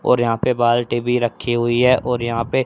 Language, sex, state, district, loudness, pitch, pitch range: Hindi, male, Haryana, Charkhi Dadri, -18 LUFS, 120 Hz, 120-125 Hz